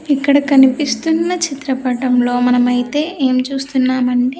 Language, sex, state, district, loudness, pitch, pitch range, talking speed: Telugu, female, Andhra Pradesh, Sri Satya Sai, -15 LUFS, 265 Hz, 250-285 Hz, 80 wpm